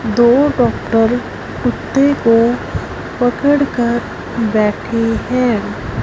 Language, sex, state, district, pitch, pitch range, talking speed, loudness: Hindi, female, Punjab, Fazilka, 235 Hz, 225-250 Hz, 80 wpm, -15 LUFS